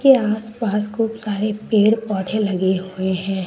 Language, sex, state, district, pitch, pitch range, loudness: Hindi, female, Bihar, West Champaran, 210 Hz, 190-220 Hz, -20 LUFS